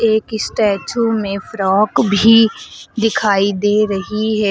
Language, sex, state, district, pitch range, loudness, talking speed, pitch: Hindi, female, Uttar Pradesh, Lucknow, 200-220 Hz, -15 LUFS, 120 wpm, 215 Hz